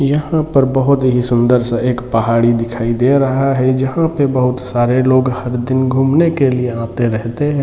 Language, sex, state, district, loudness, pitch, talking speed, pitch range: Hindi, male, Chhattisgarh, Bilaspur, -14 LUFS, 130 Hz, 195 wpm, 120-135 Hz